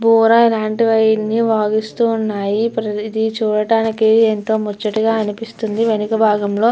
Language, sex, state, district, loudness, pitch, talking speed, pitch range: Telugu, female, Andhra Pradesh, Chittoor, -16 LUFS, 220 Hz, 105 wpm, 215-225 Hz